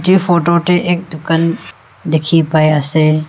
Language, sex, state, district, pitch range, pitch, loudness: Nagamese, female, Nagaland, Kohima, 155-175 Hz, 165 Hz, -13 LUFS